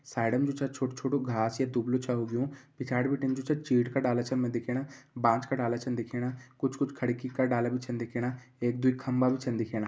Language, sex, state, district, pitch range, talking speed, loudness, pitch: Garhwali, male, Uttarakhand, Uttarkashi, 120-130 Hz, 235 wpm, -31 LUFS, 125 Hz